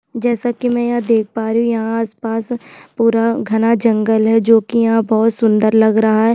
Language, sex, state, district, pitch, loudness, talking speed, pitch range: Hindi, female, Chhattisgarh, Sukma, 225 Hz, -15 LUFS, 210 wpm, 220-235 Hz